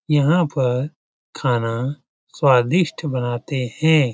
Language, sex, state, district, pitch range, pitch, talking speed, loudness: Hindi, male, Bihar, Jamui, 125-155 Hz, 135 Hz, 85 wpm, -20 LUFS